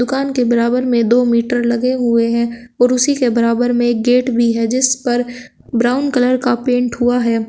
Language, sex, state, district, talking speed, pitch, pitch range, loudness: Hindi, female, Uttar Pradesh, Shamli, 200 wpm, 245 Hz, 235-250 Hz, -15 LUFS